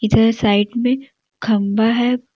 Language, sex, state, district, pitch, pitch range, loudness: Hindi, female, Jharkhand, Deoghar, 230 Hz, 215-250 Hz, -17 LUFS